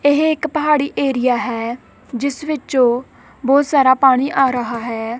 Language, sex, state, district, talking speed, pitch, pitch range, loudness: Punjabi, female, Punjab, Kapurthala, 150 wpm, 265 Hz, 245-285 Hz, -17 LUFS